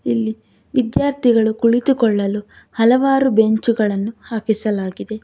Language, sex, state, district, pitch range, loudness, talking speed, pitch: Kannada, female, Karnataka, Bangalore, 205-235 Hz, -17 LUFS, 70 wpm, 220 Hz